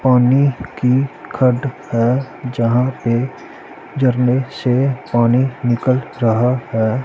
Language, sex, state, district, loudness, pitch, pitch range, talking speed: Hindi, male, Punjab, Pathankot, -17 LUFS, 125 Hz, 120-130 Hz, 100 wpm